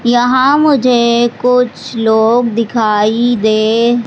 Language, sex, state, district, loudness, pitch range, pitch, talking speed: Hindi, male, Madhya Pradesh, Katni, -11 LUFS, 225-245 Hz, 235 Hz, 105 wpm